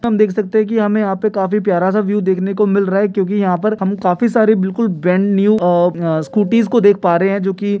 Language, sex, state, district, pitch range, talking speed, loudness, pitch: Hindi, male, Jharkhand, Jamtara, 190-215 Hz, 245 wpm, -15 LUFS, 200 Hz